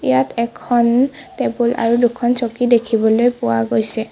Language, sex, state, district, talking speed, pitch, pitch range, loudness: Assamese, female, Assam, Sonitpur, 130 wpm, 235 Hz, 220-245 Hz, -17 LUFS